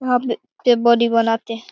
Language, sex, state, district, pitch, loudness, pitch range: Hindi, male, Bihar, Begusarai, 235 Hz, -18 LUFS, 230-245 Hz